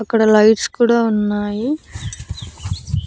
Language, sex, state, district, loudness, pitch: Telugu, female, Andhra Pradesh, Annamaya, -16 LUFS, 210 Hz